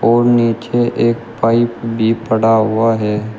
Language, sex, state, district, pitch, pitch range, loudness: Hindi, male, Uttar Pradesh, Shamli, 115 Hz, 110-115 Hz, -14 LUFS